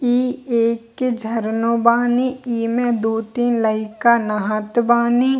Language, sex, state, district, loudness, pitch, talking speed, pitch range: Hindi, female, Bihar, Kishanganj, -19 LUFS, 235 Hz, 120 wpm, 225-245 Hz